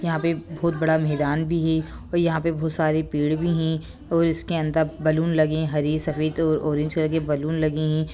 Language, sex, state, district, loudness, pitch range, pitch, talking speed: Hindi, female, Bihar, Sitamarhi, -23 LUFS, 155-165 Hz, 160 Hz, 215 wpm